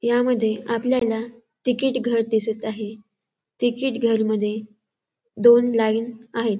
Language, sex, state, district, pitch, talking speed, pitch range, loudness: Marathi, female, Maharashtra, Dhule, 230 Hz, 110 wpm, 220-240 Hz, -22 LUFS